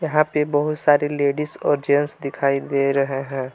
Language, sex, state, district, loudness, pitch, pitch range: Hindi, male, Jharkhand, Palamu, -20 LUFS, 145 Hz, 140-150 Hz